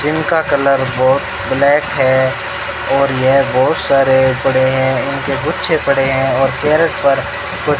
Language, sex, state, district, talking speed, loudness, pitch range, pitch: Hindi, male, Rajasthan, Bikaner, 155 wpm, -13 LUFS, 130-145 Hz, 135 Hz